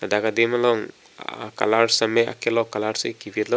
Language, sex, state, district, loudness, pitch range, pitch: Karbi, male, Assam, Karbi Anglong, -21 LUFS, 105-115 Hz, 115 Hz